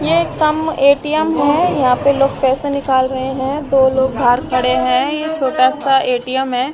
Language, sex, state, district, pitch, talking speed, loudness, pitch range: Hindi, female, Haryana, Jhajjar, 270 Hz, 195 wpm, -15 LUFS, 260-295 Hz